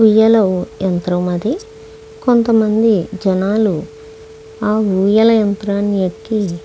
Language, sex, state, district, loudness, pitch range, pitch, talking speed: Telugu, female, Andhra Pradesh, Krishna, -15 LUFS, 195-230 Hz, 215 Hz, 80 wpm